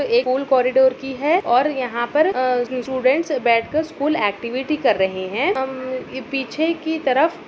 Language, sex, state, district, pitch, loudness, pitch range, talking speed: Hindi, female, Bihar, Darbhanga, 265 Hz, -20 LUFS, 250-300 Hz, 160 wpm